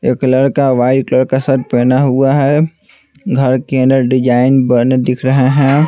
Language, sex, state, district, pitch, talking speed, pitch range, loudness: Hindi, male, Bihar, Patna, 130 Hz, 175 wpm, 130-135 Hz, -12 LUFS